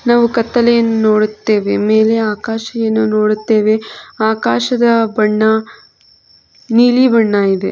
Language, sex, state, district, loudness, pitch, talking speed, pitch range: Kannada, female, Karnataka, Chamarajanagar, -13 LUFS, 220 Hz, 85 wpm, 215-230 Hz